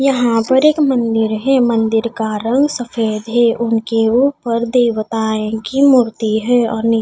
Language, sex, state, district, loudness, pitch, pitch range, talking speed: Hindi, female, Haryana, Charkhi Dadri, -15 LUFS, 230 Hz, 225-250 Hz, 155 wpm